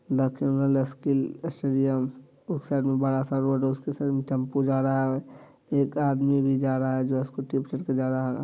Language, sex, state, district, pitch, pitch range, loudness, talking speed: Hindi, male, Bihar, Saharsa, 135 Hz, 130-140 Hz, -26 LUFS, 185 wpm